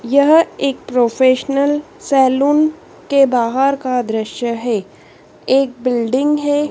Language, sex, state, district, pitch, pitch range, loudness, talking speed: Hindi, female, Madhya Pradesh, Dhar, 265 Hz, 245-285 Hz, -15 LUFS, 105 wpm